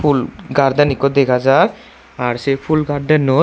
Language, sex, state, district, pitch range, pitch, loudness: Chakma, male, Tripura, Dhalai, 135-145 Hz, 140 Hz, -15 LUFS